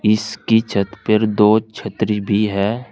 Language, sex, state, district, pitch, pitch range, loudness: Hindi, male, Uttar Pradesh, Saharanpur, 110 Hz, 105-110 Hz, -17 LUFS